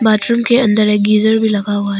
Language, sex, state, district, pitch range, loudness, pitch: Hindi, female, Arunachal Pradesh, Papum Pare, 205-220 Hz, -13 LUFS, 215 Hz